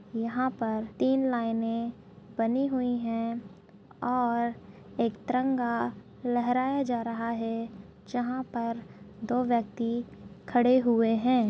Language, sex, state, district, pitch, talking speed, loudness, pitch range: Hindi, female, Uttarakhand, Tehri Garhwal, 235 Hz, 110 wpm, -29 LUFS, 225-245 Hz